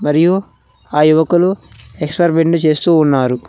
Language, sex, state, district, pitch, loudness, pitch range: Telugu, male, Telangana, Mahabubabad, 155 Hz, -13 LUFS, 145-170 Hz